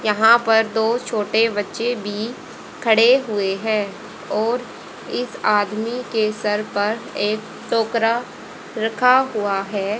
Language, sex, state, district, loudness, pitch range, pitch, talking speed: Hindi, female, Haryana, Rohtak, -20 LUFS, 210-235 Hz, 220 Hz, 120 wpm